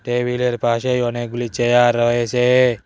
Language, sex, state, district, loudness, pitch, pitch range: Bengali, male, West Bengal, Cooch Behar, -18 LUFS, 120 Hz, 120-125 Hz